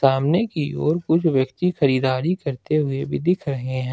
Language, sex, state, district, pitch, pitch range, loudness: Hindi, male, Jharkhand, Ranchi, 145 Hz, 130-165 Hz, -21 LUFS